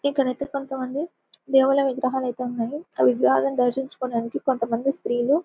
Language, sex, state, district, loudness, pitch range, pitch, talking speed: Telugu, female, Telangana, Karimnagar, -23 LUFS, 235-275 Hz, 260 Hz, 130 wpm